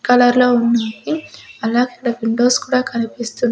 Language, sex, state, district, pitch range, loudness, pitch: Telugu, female, Andhra Pradesh, Sri Satya Sai, 230-250 Hz, -17 LUFS, 245 Hz